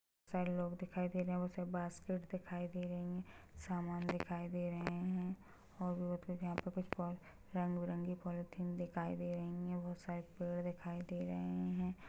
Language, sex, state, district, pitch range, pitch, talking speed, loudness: Hindi, female, Chhattisgarh, Bastar, 175-180 Hz, 175 Hz, 195 wpm, -43 LUFS